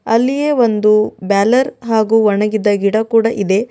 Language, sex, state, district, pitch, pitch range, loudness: Kannada, female, Karnataka, Bidar, 220 Hz, 210-230 Hz, -14 LUFS